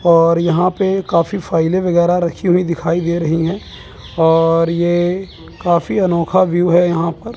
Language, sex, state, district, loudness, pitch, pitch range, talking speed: Hindi, male, Chandigarh, Chandigarh, -15 LUFS, 175 Hz, 170-185 Hz, 165 wpm